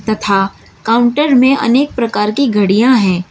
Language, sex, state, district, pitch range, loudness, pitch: Hindi, female, Uttar Pradesh, Shamli, 205-255 Hz, -12 LUFS, 230 Hz